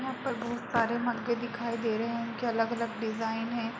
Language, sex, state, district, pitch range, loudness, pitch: Hindi, female, Uttar Pradesh, Jalaun, 225-240 Hz, -32 LUFS, 235 Hz